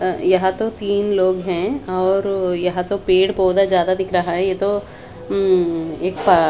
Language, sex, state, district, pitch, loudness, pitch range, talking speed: Hindi, female, Haryana, Charkhi Dadri, 185 Hz, -18 LUFS, 180-195 Hz, 175 wpm